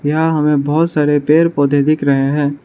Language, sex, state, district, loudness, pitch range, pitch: Hindi, male, Arunachal Pradesh, Lower Dibang Valley, -14 LUFS, 145-155 Hz, 145 Hz